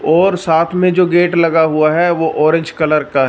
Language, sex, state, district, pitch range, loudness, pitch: Hindi, male, Punjab, Fazilka, 155-175 Hz, -13 LUFS, 165 Hz